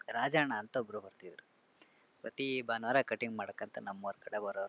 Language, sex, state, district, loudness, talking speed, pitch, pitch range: Kannada, male, Karnataka, Shimoga, -37 LUFS, 165 wpm, 105 Hz, 100-115 Hz